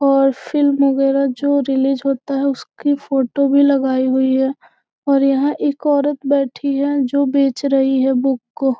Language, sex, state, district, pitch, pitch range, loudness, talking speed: Hindi, female, Bihar, Gopalganj, 275 Hz, 270-280 Hz, -17 LUFS, 170 wpm